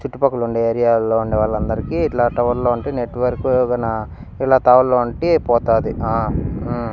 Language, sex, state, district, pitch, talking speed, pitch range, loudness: Telugu, male, Andhra Pradesh, Annamaya, 120 Hz, 140 wpm, 115-125 Hz, -18 LUFS